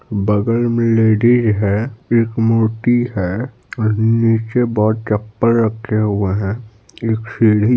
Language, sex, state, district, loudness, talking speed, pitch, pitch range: Hindi, male, Bihar, Supaul, -16 LUFS, 130 wpm, 110 Hz, 110-115 Hz